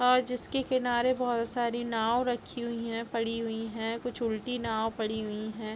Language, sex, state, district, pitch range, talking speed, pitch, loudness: Hindi, female, Chhattisgarh, Bilaspur, 225-245 Hz, 185 wpm, 230 Hz, -31 LUFS